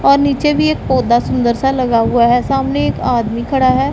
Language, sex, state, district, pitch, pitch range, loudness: Hindi, female, Punjab, Pathankot, 250 Hz, 235-270 Hz, -14 LUFS